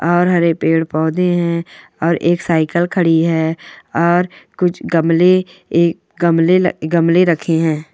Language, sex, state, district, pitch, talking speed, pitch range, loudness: Hindi, male, West Bengal, Purulia, 170 Hz, 130 wpm, 165-175 Hz, -15 LUFS